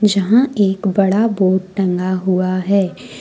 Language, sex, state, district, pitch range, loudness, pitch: Hindi, female, Jharkhand, Deoghar, 185-205 Hz, -16 LUFS, 195 Hz